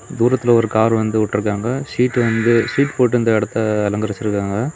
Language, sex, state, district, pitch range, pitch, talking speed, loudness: Tamil, male, Tamil Nadu, Kanyakumari, 105-120 Hz, 115 Hz, 150 wpm, -17 LUFS